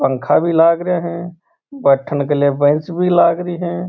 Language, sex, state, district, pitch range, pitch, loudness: Marwari, male, Rajasthan, Churu, 145-175 Hz, 170 Hz, -15 LUFS